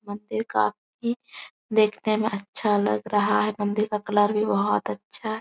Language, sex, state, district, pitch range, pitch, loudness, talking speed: Hindi, female, Bihar, Supaul, 205-215 Hz, 210 Hz, -25 LUFS, 165 wpm